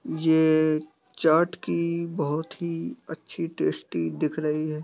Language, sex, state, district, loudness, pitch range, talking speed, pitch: Hindi, male, Bihar, East Champaran, -25 LUFS, 150-165 Hz, 125 wpm, 155 Hz